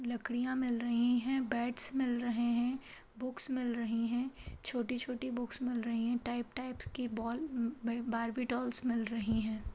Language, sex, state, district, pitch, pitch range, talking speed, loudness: Hindi, female, Uttar Pradesh, Jalaun, 240 Hz, 235-250 Hz, 160 wpm, -36 LUFS